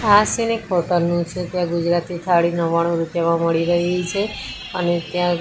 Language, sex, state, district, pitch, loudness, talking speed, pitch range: Gujarati, female, Gujarat, Gandhinagar, 175 Hz, -20 LUFS, 175 wpm, 170-180 Hz